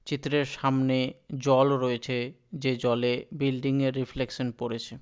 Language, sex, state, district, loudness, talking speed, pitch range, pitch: Bengali, male, West Bengal, Dakshin Dinajpur, -28 LUFS, 120 wpm, 125-135 Hz, 130 Hz